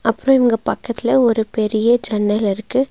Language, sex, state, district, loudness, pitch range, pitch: Tamil, female, Tamil Nadu, Nilgiris, -17 LUFS, 215-250 Hz, 230 Hz